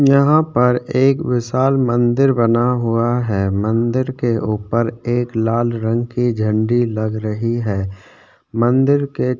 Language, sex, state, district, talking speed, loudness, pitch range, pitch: Hindi, male, Chhattisgarh, Sukma, 140 wpm, -17 LUFS, 115-125 Hz, 120 Hz